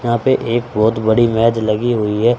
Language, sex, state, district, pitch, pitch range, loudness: Hindi, male, Haryana, Charkhi Dadri, 115 Hz, 110-120 Hz, -15 LUFS